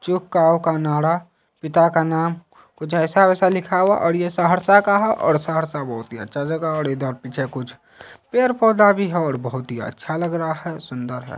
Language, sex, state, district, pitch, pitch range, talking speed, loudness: Hindi, male, Bihar, Saharsa, 165 Hz, 145-180 Hz, 205 wpm, -19 LUFS